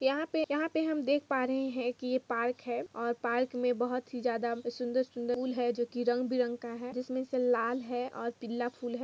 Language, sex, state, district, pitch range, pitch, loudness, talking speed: Hindi, female, Jharkhand, Jamtara, 240-260 Hz, 245 Hz, -33 LUFS, 230 wpm